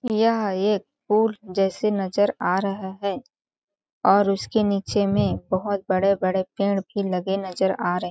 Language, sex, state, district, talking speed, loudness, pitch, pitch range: Hindi, female, Chhattisgarh, Balrampur, 155 wpm, -23 LUFS, 200 Hz, 190-210 Hz